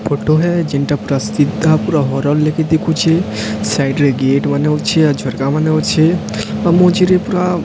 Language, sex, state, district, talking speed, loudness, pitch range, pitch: Odia, male, Odisha, Sambalpur, 165 wpm, -14 LUFS, 135-165 Hz, 155 Hz